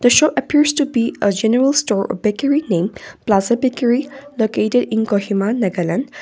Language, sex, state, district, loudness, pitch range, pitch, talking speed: English, female, Nagaland, Kohima, -17 LUFS, 205-275 Hz, 235 Hz, 145 wpm